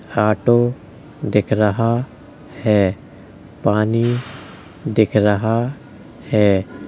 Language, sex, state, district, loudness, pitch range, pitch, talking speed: Hindi, male, Uttar Pradesh, Jalaun, -18 LUFS, 105-120 Hz, 110 Hz, 70 wpm